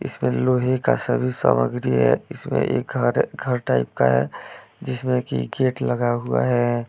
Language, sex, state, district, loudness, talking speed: Hindi, male, Jharkhand, Deoghar, -21 LUFS, 165 wpm